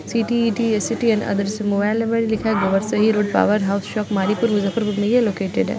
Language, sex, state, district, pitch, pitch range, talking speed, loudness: Hindi, female, Bihar, Muzaffarpur, 210 Hz, 205-230 Hz, 205 wpm, -19 LUFS